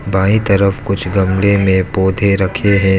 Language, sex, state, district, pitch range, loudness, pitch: Hindi, male, Arunachal Pradesh, Lower Dibang Valley, 95-100 Hz, -13 LUFS, 100 Hz